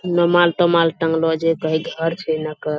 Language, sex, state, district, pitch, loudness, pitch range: Angika, female, Bihar, Bhagalpur, 165 Hz, -18 LUFS, 160-170 Hz